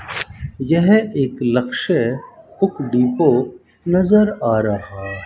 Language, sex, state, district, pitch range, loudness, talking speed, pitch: Hindi, male, Rajasthan, Bikaner, 120-200 Hz, -17 LUFS, 90 wpm, 135 Hz